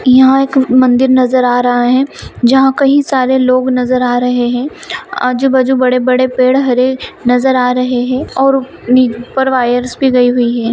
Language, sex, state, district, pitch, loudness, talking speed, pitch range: Hindi, female, Bihar, Saharsa, 255 Hz, -11 LUFS, 175 wpm, 250-265 Hz